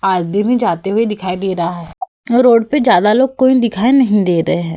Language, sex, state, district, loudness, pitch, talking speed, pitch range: Hindi, female, Uttar Pradesh, Hamirpur, -13 LUFS, 210 Hz, 225 wpm, 180-245 Hz